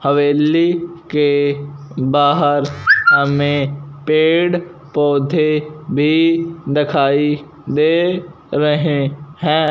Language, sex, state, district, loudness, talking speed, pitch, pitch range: Hindi, male, Punjab, Fazilka, -16 LUFS, 70 wpm, 150 Hz, 145-165 Hz